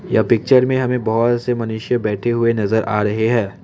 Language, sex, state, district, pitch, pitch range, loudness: Hindi, male, Assam, Kamrup Metropolitan, 115 Hz, 110-120 Hz, -17 LUFS